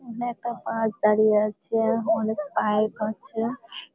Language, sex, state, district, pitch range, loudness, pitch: Bengali, female, West Bengal, Malda, 215-235 Hz, -25 LUFS, 225 Hz